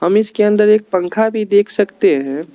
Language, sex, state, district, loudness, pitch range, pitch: Hindi, male, Arunachal Pradesh, Lower Dibang Valley, -14 LUFS, 180-215 Hz, 210 Hz